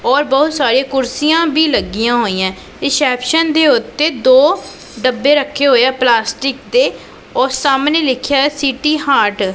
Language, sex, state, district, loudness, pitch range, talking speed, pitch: Punjabi, female, Punjab, Pathankot, -13 LUFS, 250-295 Hz, 145 wpm, 275 Hz